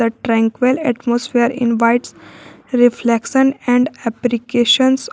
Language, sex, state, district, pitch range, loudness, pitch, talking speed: English, female, Jharkhand, Garhwa, 235-255 Hz, -15 LUFS, 240 Hz, 80 wpm